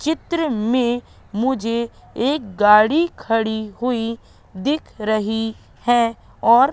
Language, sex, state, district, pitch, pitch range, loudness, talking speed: Hindi, female, Madhya Pradesh, Katni, 235 Hz, 220-260 Hz, -20 LUFS, 100 wpm